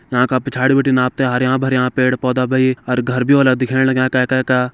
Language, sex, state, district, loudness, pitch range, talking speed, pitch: Garhwali, male, Uttarakhand, Tehri Garhwal, -15 LUFS, 125-130 Hz, 225 wpm, 130 Hz